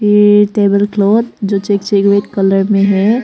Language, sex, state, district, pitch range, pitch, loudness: Hindi, female, Arunachal Pradesh, Papum Pare, 200-210 Hz, 200 Hz, -12 LUFS